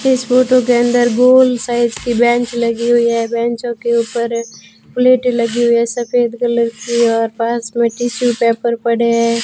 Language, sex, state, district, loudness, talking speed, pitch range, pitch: Hindi, female, Rajasthan, Bikaner, -14 LUFS, 185 wpm, 235-245 Hz, 240 Hz